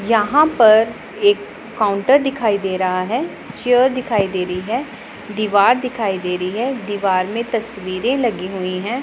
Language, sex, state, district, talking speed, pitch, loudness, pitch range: Hindi, female, Punjab, Pathankot, 160 wpm, 220 Hz, -18 LUFS, 190-250 Hz